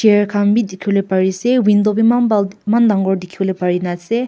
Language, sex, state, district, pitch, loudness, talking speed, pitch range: Nagamese, female, Nagaland, Kohima, 205 Hz, -15 LUFS, 240 wpm, 190-225 Hz